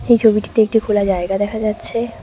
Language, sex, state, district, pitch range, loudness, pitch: Bengali, female, West Bengal, Cooch Behar, 205-225 Hz, -17 LUFS, 215 Hz